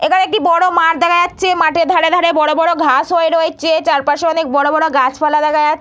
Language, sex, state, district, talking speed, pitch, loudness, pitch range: Bengali, female, West Bengal, Purulia, 205 wpm, 325 Hz, -13 LUFS, 305-345 Hz